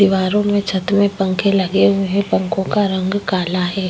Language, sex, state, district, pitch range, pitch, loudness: Hindi, female, Uttar Pradesh, Budaun, 185-200 Hz, 195 Hz, -17 LUFS